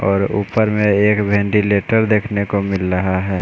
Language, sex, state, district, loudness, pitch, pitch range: Hindi, male, Maharashtra, Gondia, -16 LUFS, 100 Hz, 100-105 Hz